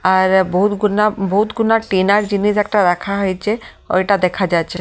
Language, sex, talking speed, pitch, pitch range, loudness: Bengali, female, 160 wpm, 200 Hz, 185-210 Hz, -16 LUFS